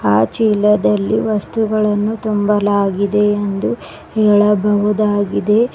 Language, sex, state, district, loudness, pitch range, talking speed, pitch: Kannada, female, Karnataka, Bidar, -15 LUFS, 205-215 Hz, 65 wpm, 210 Hz